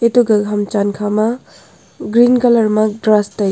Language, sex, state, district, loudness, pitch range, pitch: Wancho, female, Arunachal Pradesh, Longding, -14 LUFS, 205-235 Hz, 215 Hz